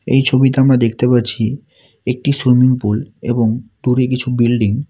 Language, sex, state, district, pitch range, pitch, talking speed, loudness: Bengali, male, West Bengal, Alipurduar, 120-130 Hz, 125 Hz, 160 wpm, -15 LUFS